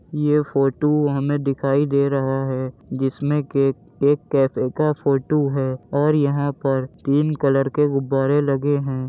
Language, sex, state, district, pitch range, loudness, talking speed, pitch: Hindi, male, Uttar Pradesh, Jyotiba Phule Nagar, 135-145 Hz, -20 LUFS, 150 wpm, 140 Hz